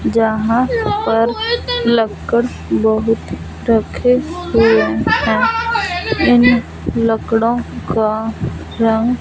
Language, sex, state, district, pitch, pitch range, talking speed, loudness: Hindi, female, Punjab, Fazilka, 230 Hz, 225-250 Hz, 70 wpm, -15 LUFS